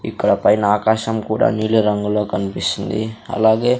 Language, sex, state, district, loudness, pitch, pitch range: Telugu, male, Andhra Pradesh, Sri Satya Sai, -18 LUFS, 110 Hz, 105-110 Hz